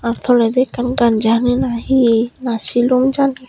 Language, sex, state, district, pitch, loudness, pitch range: Chakma, female, Tripura, Dhalai, 245 Hz, -15 LUFS, 235-255 Hz